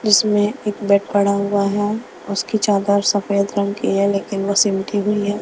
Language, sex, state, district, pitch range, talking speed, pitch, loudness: Hindi, female, Maharashtra, Mumbai Suburban, 200-205 Hz, 190 wpm, 200 Hz, -18 LUFS